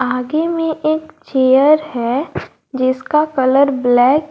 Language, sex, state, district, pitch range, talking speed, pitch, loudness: Hindi, female, Jharkhand, Garhwa, 255-310 Hz, 125 wpm, 275 Hz, -15 LUFS